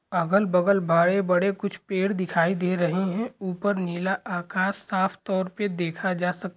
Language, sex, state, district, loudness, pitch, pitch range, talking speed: Hindi, male, Bihar, Saran, -25 LUFS, 190 Hz, 180-195 Hz, 165 wpm